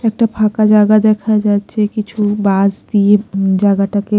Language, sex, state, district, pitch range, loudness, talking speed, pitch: Bengali, female, Odisha, Khordha, 200-215 Hz, -13 LUFS, 145 wpm, 210 Hz